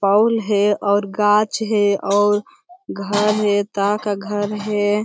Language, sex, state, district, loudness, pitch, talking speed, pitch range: Hindi, male, Bihar, Jamui, -18 LUFS, 205 Hz, 140 wpm, 205-210 Hz